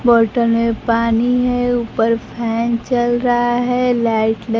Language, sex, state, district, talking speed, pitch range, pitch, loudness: Hindi, female, Bihar, Kaimur, 145 wpm, 230-245 Hz, 235 Hz, -16 LUFS